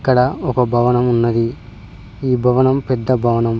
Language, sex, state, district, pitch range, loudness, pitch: Telugu, male, Telangana, Mahabubabad, 115-130 Hz, -16 LUFS, 125 Hz